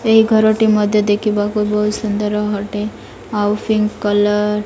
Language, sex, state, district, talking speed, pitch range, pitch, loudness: Odia, female, Odisha, Malkangiri, 155 wpm, 205-215 Hz, 210 Hz, -16 LUFS